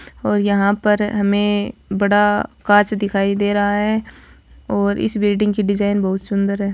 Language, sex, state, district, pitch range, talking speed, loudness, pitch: Marwari, female, Rajasthan, Churu, 200-205 Hz, 160 wpm, -18 LUFS, 205 Hz